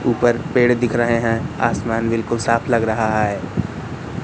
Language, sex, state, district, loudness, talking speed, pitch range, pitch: Hindi, male, Madhya Pradesh, Katni, -19 LUFS, 155 wpm, 115-120 Hz, 115 Hz